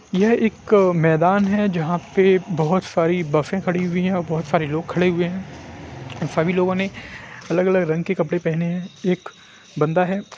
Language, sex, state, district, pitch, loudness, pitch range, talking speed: Hindi, male, Bihar, Gopalganj, 180 Hz, -20 LUFS, 165-190 Hz, 180 wpm